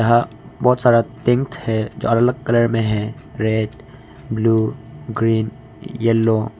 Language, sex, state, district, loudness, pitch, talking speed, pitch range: Hindi, male, Arunachal Pradesh, Longding, -19 LUFS, 115 Hz, 145 wpm, 110-120 Hz